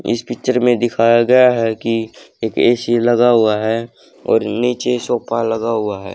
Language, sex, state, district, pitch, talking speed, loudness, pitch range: Hindi, male, Haryana, Charkhi Dadri, 115 Hz, 175 wpm, -16 LUFS, 115-120 Hz